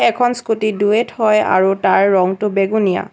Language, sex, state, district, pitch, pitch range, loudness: Assamese, female, Assam, Sonitpur, 210 Hz, 195-220 Hz, -15 LUFS